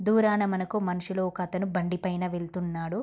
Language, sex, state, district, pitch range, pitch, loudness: Telugu, female, Andhra Pradesh, Guntur, 180-195 Hz, 185 Hz, -29 LUFS